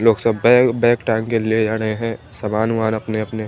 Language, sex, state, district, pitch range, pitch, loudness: Hindi, male, Chandigarh, Chandigarh, 110-115 Hz, 110 Hz, -18 LUFS